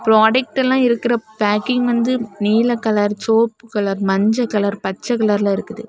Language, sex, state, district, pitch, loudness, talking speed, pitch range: Tamil, female, Tamil Nadu, Kanyakumari, 220 Hz, -17 LUFS, 140 wpm, 205-240 Hz